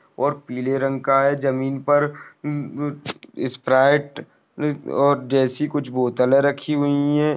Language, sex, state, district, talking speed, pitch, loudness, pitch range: Hindi, male, Maharashtra, Nagpur, 120 wpm, 140 Hz, -21 LUFS, 135-145 Hz